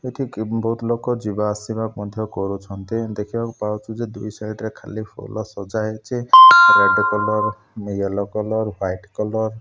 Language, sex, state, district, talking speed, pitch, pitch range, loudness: Odia, male, Odisha, Malkangiri, 155 wpm, 110 Hz, 105-115 Hz, -18 LUFS